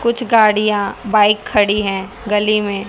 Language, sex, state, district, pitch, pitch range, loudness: Hindi, female, Haryana, Rohtak, 210 Hz, 205-220 Hz, -15 LUFS